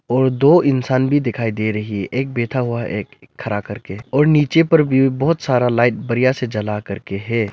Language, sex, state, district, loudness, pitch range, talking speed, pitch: Hindi, male, Arunachal Pradesh, Lower Dibang Valley, -17 LUFS, 110-135 Hz, 205 wpm, 125 Hz